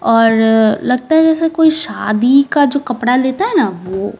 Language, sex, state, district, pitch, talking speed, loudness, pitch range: Hindi, female, Bihar, Patna, 255 Hz, 200 wpm, -13 LUFS, 225-315 Hz